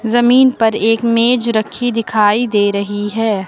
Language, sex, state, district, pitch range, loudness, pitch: Hindi, female, Uttar Pradesh, Lucknow, 210-240 Hz, -14 LUFS, 225 Hz